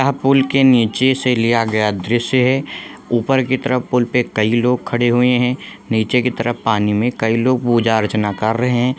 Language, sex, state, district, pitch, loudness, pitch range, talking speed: Hindi, male, Jharkhand, Sahebganj, 120 Hz, -16 LUFS, 115-130 Hz, 205 wpm